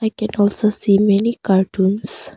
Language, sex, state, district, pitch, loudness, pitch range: English, female, Arunachal Pradesh, Longding, 205 Hz, -16 LUFS, 200-215 Hz